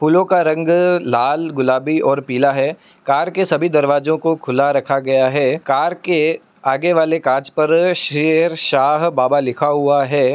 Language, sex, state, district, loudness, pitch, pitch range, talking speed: Hindi, male, Uttar Pradesh, Etah, -16 LUFS, 155 Hz, 140-165 Hz, 155 wpm